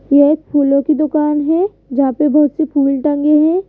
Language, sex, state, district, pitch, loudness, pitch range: Hindi, female, Madhya Pradesh, Bhopal, 295 Hz, -14 LUFS, 285-305 Hz